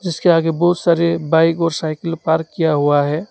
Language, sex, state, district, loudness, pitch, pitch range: Hindi, male, West Bengal, Alipurduar, -16 LUFS, 165 Hz, 160-170 Hz